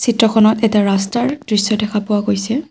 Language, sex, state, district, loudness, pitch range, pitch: Assamese, female, Assam, Kamrup Metropolitan, -15 LUFS, 205-235 Hz, 215 Hz